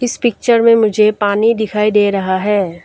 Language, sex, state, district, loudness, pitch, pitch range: Hindi, female, Arunachal Pradesh, Lower Dibang Valley, -13 LUFS, 210 Hz, 205-230 Hz